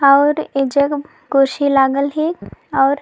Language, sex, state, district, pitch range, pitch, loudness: Sadri, female, Chhattisgarh, Jashpur, 275-295 Hz, 280 Hz, -16 LUFS